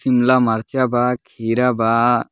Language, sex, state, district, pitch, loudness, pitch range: Bhojpuri, male, Bihar, Muzaffarpur, 120 Hz, -17 LUFS, 115-125 Hz